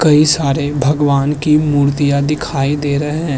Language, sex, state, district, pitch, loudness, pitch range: Hindi, male, Uttar Pradesh, Hamirpur, 145 Hz, -14 LUFS, 140-150 Hz